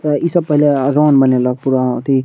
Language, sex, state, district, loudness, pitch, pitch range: Maithili, male, Bihar, Madhepura, -13 LUFS, 140 Hz, 130-150 Hz